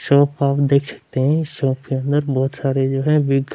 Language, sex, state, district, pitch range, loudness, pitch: Hindi, male, Bihar, Vaishali, 135-145 Hz, -19 LUFS, 140 Hz